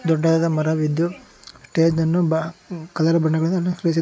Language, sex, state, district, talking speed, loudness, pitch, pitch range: Kannada, male, Karnataka, Shimoga, 120 wpm, -20 LUFS, 165 Hz, 160-170 Hz